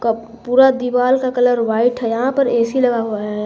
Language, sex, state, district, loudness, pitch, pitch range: Hindi, female, Jharkhand, Garhwa, -16 LUFS, 245 Hz, 230-255 Hz